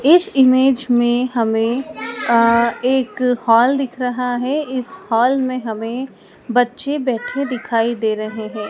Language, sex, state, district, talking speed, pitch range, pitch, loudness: Hindi, female, Madhya Pradesh, Dhar, 140 wpm, 230-260 Hz, 245 Hz, -17 LUFS